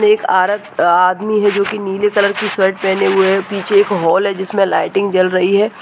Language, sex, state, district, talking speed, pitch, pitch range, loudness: Hindi, male, Rajasthan, Nagaur, 235 wpm, 200 Hz, 190-205 Hz, -14 LUFS